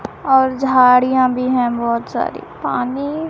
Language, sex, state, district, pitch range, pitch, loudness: Hindi, female, Chhattisgarh, Raipur, 250-265 Hz, 255 Hz, -16 LUFS